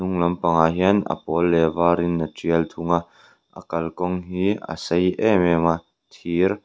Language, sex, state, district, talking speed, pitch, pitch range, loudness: Mizo, male, Mizoram, Aizawl, 200 wpm, 85 Hz, 85-90 Hz, -21 LUFS